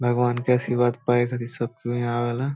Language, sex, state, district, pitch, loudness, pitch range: Bhojpuri, male, Bihar, Saran, 120 Hz, -24 LUFS, 120-125 Hz